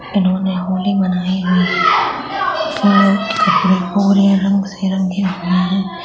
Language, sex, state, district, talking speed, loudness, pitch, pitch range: Hindi, female, Bihar, Muzaffarpur, 140 wpm, -15 LUFS, 195 Hz, 185-205 Hz